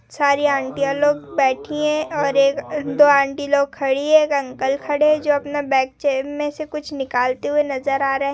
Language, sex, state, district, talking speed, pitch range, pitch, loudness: Hindi, female, Bihar, Gopalganj, 210 wpm, 275-295 Hz, 285 Hz, -19 LUFS